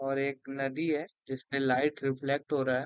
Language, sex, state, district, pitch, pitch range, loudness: Hindi, male, Uttar Pradesh, Varanasi, 135 Hz, 135-145 Hz, -32 LUFS